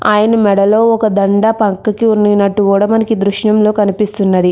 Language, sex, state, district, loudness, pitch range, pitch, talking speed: Telugu, female, Andhra Pradesh, Krishna, -12 LUFS, 200-215 Hz, 210 Hz, 145 wpm